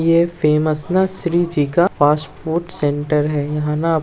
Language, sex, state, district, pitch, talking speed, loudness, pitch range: Hindi, male, Uttar Pradesh, Hamirpur, 155 Hz, 210 wpm, -17 LUFS, 150-170 Hz